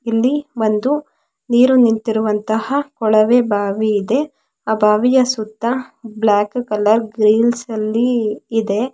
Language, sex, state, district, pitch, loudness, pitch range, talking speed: Kannada, female, Karnataka, Mysore, 225 Hz, -16 LUFS, 215-245 Hz, 100 wpm